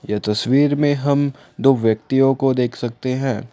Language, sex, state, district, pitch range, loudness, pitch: Hindi, male, Assam, Kamrup Metropolitan, 120-140 Hz, -18 LUFS, 135 Hz